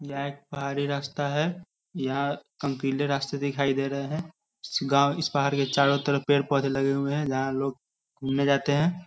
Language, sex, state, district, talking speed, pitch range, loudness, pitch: Hindi, male, Bihar, Muzaffarpur, 185 wpm, 140-145 Hz, -27 LUFS, 140 Hz